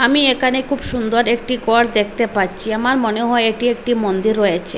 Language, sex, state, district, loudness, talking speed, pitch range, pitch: Bengali, female, Assam, Hailakandi, -17 LUFS, 190 wpm, 220-245 Hz, 235 Hz